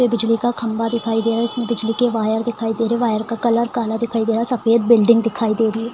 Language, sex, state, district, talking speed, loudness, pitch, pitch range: Hindi, female, Bihar, Saran, 295 wpm, -18 LUFS, 230 Hz, 225-235 Hz